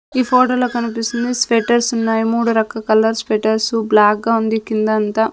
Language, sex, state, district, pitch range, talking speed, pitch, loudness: Telugu, female, Andhra Pradesh, Sri Satya Sai, 220-235 Hz, 170 wpm, 225 Hz, -16 LUFS